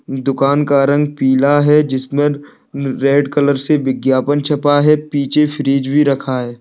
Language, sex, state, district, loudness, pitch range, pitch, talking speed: Hindi, male, Bihar, Kishanganj, -14 LUFS, 135-145 Hz, 140 Hz, 165 wpm